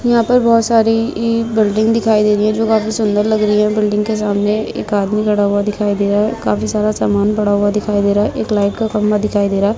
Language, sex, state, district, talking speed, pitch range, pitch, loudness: Hindi, female, Uttar Pradesh, Jalaun, 270 wpm, 205-220 Hz, 210 Hz, -15 LUFS